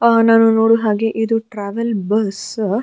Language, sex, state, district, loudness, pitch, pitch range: Kannada, female, Karnataka, Dharwad, -16 LUFS, 225 Hz, 210-225 Hz